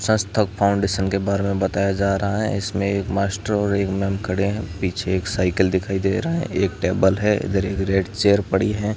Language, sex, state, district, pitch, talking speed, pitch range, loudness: Hindi, male, Rajasthan, Barmer, 100 Hz, 220 wpm, 95-100 Hz, -21 LUFS